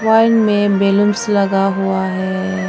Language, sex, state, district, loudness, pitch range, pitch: Hindi, female, Arunachal Pradesh, Longding, -15 LUFS, 195-205 Hz, 195 Hz